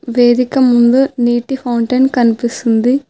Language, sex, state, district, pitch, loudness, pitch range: Telugu, female, Telangana, Hyderabad, 245 Hz, -13 LUFS, 240-260 Hz